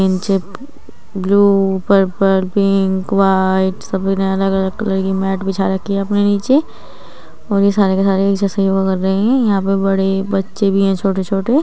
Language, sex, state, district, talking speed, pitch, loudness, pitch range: Hindi, female, Uttar Pradesh, Muzaffarnagar, 210 wpm, 195 Hz, -15 LUFS, 190-200 Hz